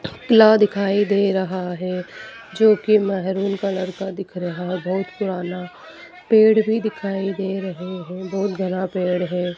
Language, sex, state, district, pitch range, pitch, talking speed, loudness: Hindi, female, Madhya Pradesh, Dhar, 185-210 Hz, 195 Hz, 145 wpm, -20 LUFS